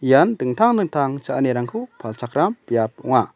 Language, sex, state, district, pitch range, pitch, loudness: Garo, male, Meghalaya, West Garo Hills, 120-190 Hz, 135 Hz, -20 LUFS